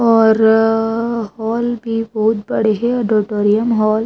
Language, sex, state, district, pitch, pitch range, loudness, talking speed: Chhattisgarhi, female, Chhattisgarh, Raigarh, 225 Hz, 215-230 Hz, -15 LUFS, 135 wpm